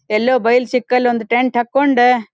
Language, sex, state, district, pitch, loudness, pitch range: Kannada, female, Karnataka, Dharwad, 245 Hz, -15 LUFS, 240-250 Hz